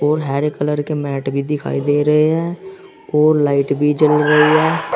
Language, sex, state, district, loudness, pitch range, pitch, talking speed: Hindi, male, Uttar Pradesh, Saharanpur, -16 LUFS, 145-155 Hz, 150 Hz, 195 wpm